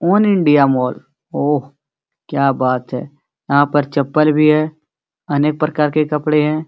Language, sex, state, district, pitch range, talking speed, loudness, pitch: Hindi, male, Bihar, Supaul, 140-155 Hz, 150 wpm, -16 LUFS, 150 Hz